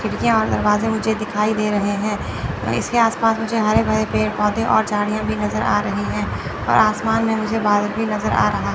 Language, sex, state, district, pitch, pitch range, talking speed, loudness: Hindi, female, Chandigarh, Chandigarh, 215 Hz, 205-220 Hz, 215 wpm, -19 LUFS